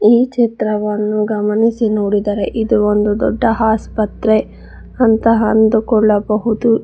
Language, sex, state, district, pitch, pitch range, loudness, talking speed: Kannada, female, Karnataka, Bangalore, 220 Hz, 210-225 Hz, -15 LUFS, 90 wpm